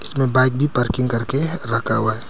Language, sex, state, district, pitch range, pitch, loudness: Hindi, male, Arunachal Pradesh, Papum Pare, 115-135 Hz, 125 Hz, -18 LUFS